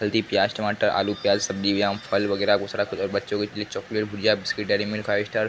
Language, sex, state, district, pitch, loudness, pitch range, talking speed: Hindi, male, Bihar, Araria, 105 Hz, -24 LUFS, 100-105 Hz, 250 wpm